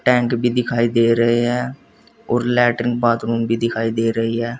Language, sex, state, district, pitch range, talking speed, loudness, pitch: Hindi, male, Uttar Pradesh, Saharanpur, 115-120 Hz, 185 wpm, -18 LUFS, 120 Hz